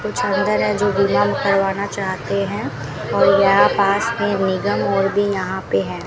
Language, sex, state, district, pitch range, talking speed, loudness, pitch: Hindi, female, Rajasthan, Bikaner, 190-200 Hz, 170 wpm, -18 LUFS, 195 Hz